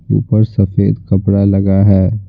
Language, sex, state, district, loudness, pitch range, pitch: Hindi, male, Bihar, Patna, -12 LUFS, 95-110 Hz, 100 Hz